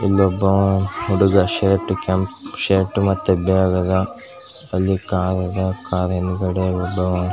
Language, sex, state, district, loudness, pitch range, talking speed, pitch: Kannada, male, Karnataka, Gulbarga, -19 LUFS, 90-95 Hz, 115 wpm, 95 Hz